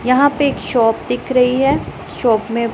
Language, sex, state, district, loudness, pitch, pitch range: Hindi, female, Punjab, Pathankot, -16 LUFS, 250 Hz, 235-270 Hz